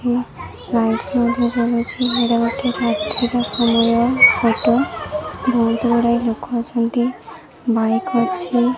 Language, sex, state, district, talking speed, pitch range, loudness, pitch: Odia, female, Odisha, Sambalpur, 75 wpm, 230-245 Hz, -17 LUFS, 240 Hz